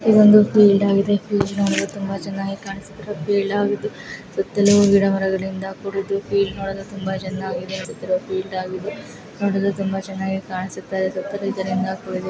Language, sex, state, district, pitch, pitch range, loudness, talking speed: Kannada, female, Karnataka, Chamarajanagar, 195 Hz, 190-200 Hz, -20 LUFS, 150 wpm